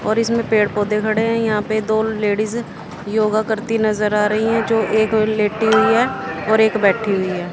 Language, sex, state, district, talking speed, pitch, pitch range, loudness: Hindi, female, Haryana, Jhajjar, 205 wpm, 215 Hz, 210-220 Hz, -17 LUFS